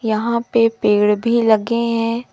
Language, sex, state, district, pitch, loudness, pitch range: Hindi, female, Madhya Pradesh, Umaria, 230 Hz, -17 LUFS, 215-235 Hz